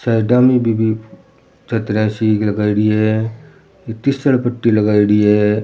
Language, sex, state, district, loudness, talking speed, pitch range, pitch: Rajasthani, male, Rajasthan, Churu, -15 LUFS, 115 wpm, 105-115 Hz, 110 Hz